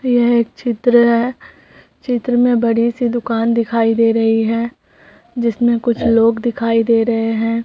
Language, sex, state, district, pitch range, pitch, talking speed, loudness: Hindi, male, Uttarakhand, Tehri Garhwal, 230-240 Hz, 235 Hz, 155 wpm, -15 LUFS